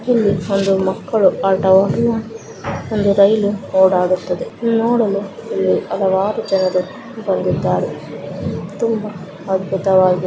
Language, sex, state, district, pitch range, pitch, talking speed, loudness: Kannada, female, Karnataka, Mysore, 190-220 Hz, 195 Hz, 90 wpm, -17 LUFS